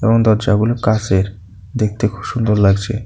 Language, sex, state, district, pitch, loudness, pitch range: Bengali, male, Tripura, South Tripura, 110 Hz, -16 LUFS, 100-115 Hz